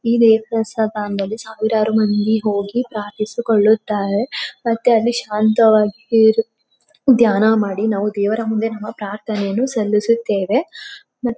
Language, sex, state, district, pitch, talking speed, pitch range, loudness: Kannada, female, Karnataka, Mysore, 220 Hz, 110 wpm, 210-230 Hz, -17 LUFS